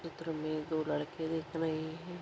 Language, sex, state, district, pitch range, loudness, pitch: Hindi, female, Maharashtra, Sindhudurg, 155-165 Hz, -37 LUFS, 160 Hz